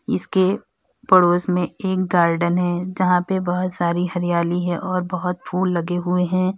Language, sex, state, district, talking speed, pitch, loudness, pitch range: Hindi, female, Uttar Pradesh, Lalitpur, 165 wpm, 180 Hz, -20 LUFS, 175-185 Hz